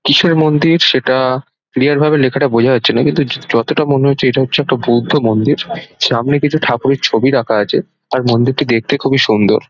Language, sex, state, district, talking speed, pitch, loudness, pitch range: Bengali, male, West Bengal, Dakshin Dinajpur, 180 wpm, 135 Hz, -13 LUFS, 125-145 Hz